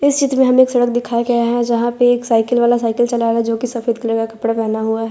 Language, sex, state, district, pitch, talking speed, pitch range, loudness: Hindi, female, Gujarat, Valsad, 235 Hz, 295 wpm, 230-245 Hz, -16 LUFS